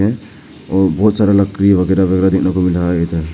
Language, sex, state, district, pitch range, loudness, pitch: Hindi, male, Arunachal Pradesh, Papum Pare, 90-100 Hz, -14 LUFS, 95 Hz